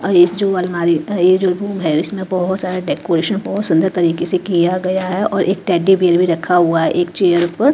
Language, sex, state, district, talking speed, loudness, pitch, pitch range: Hindi, female, Haryana, Rohtak, 225 wpm, -15 LUFS, 180 Hz, 175-190 Hz